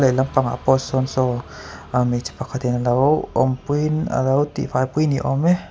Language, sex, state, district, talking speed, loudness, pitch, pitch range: Mizo, male, Mizoram, Aizawl, 170 wpm, -20 LUFS, 130 Hz, 125-145 Hz